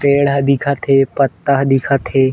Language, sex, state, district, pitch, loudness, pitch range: Chhattisgarhi, male, Chhattisgarh, Bilaspur, 140 Hz, -14 LUFS, 135-140 Hz